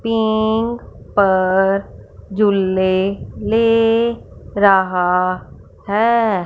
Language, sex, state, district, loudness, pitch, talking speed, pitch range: Hindi, female, Punjab, Fazilka, -16 LUFS, 200 Hz, 55 wpm, 190-225 Hz